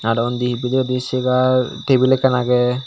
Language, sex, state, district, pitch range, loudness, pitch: Chakma, male, Tripura, Dhalai, 125-130 Hz, -17 LUFS, 125 Hz